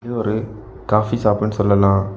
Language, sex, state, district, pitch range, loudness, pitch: Tamil, male, Tamil Nadu, Kanyakumari, 100-110 Hz, -18 LUFS, 105 Hz